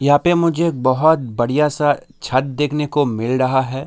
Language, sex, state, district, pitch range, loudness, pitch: Hindi, male, Bihar, Kishanganj, 130-150 Hz, -17 LUFS, 145 Hz